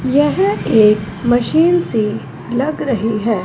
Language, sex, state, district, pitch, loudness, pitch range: Hindi, female, Punjab, Fazilka, 240 Hz, -15 LUFS, 220-295 Hz